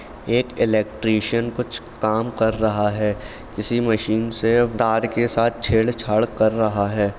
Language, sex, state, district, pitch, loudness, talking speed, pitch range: Hindi, male, Bihar, Saran, 110 Hz, -21 LUFS, 140 wpm, 110-115 Hz